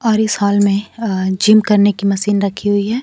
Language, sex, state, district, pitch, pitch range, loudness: Hindi, female, Bihar, Kaimur, 205 Hz, 200-215 Hz, -14 LUFS